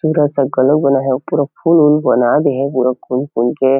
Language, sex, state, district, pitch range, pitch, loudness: Chhattisgarhi, male, Chhattisgarh, Kabirdham, 130-150 Hz, 140 Hz, -14 LUFS